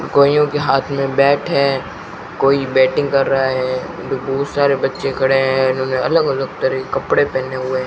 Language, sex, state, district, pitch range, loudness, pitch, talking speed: Hindi, male, Rajasthan, Bikaner, 130-140 Hz, -16 LUFS, 135 Hz, 200 wpm